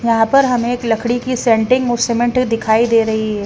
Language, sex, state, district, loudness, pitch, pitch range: Hindi, female, Haryana, Rohtak, -15 LUFS, 235 Hz, 225-245 Hz